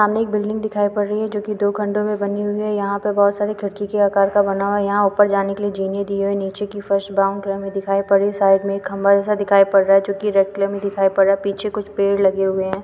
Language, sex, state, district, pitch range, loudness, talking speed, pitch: Hindi, female, Chhattisgarh, Jashpur, 195-205 Hz, -18 LUFS, 320 wpm, 200 Hz